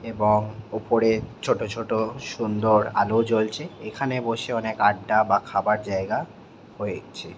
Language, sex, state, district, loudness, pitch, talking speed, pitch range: Bengali, male, West Bengal, Jhargram, -24 LUFS, 110 Hz, 140 wpm, 105-115 Hz